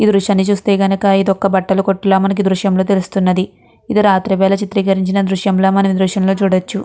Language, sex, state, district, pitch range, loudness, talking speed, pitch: Telugu, female, Andhra Pradesh, Guntur, 190-200 Hz, -14 LUFS, 200 wpm, 195 Hz